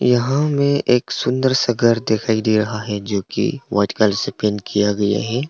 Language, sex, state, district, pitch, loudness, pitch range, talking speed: Hindi, male, Arunachal Pradesh, Longding, 115 Hz, -18 LUFS, 105-130 Hz, 205 wpm